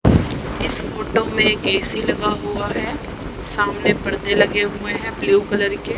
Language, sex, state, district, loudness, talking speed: Hindi, female, Haryana, Rohtak, -20 LUFS, 160 wpm